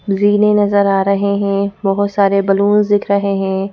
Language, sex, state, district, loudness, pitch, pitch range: Hindi, female, Madhya Pradesh, Bhopal, -14 LUFS, 200 Hz, 195-205 Hz